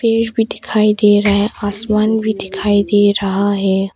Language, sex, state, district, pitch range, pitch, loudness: Hindi, female, Arunachal Pradesh, Longding, 200-215 Hz, 205 Hz, -15 LUFS